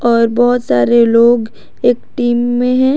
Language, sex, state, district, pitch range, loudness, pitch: Hindi, female, Jharkhand, Garhwa, 230-245 Hz, -12 LUFS, 240 Hz